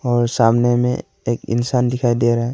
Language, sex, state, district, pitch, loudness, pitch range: Hindi, male, Arunachal Pradesh, Longding, 120 Hz, -18 LUFS, 120-125 Hz